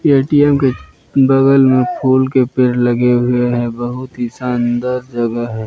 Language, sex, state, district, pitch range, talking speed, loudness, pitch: Hindi, male, Bihar, Katihar, 120-135 Hz, 160 wpm, -14 LUFS, 125 Hz